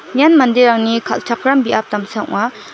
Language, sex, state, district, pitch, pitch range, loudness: Garo, female, Meghalaya, West Garo Hills, 235 Hz, 225-265 Hz, -14 LUFS